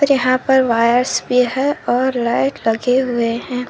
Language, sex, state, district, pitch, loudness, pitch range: Hindi, female, Karnataka, Koppal, 250 Hz, -16 LUFS, 240-265 Hz